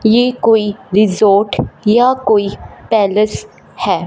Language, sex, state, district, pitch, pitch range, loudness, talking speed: Hindi, female, Punjab, Fazilka, 215 Hz, 205-230 Hz, -13 LUFS, 105 wpm